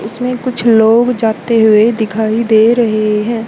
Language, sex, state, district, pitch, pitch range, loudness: Hindi, female, Haryana, Charkhi Dadri, 225 Hz, 220-235 Hz, -11 LUFS